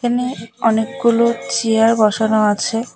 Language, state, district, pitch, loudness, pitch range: Bengali, West Bengal, Alipurduar, 225 Hz, -16 LUFS, 220-235 Hz